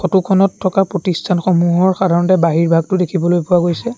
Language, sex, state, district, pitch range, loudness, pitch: Assamese, male, Assam, Sonitpur, 175-190 Hz, -14 LUFS, 185 Hz